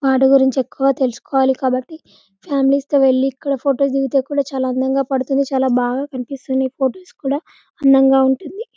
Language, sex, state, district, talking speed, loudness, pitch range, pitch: Telugu, female, Telangana, Karimnagar, 150 wpm, -17 LUFS, 265-275 Hz, 270 Hz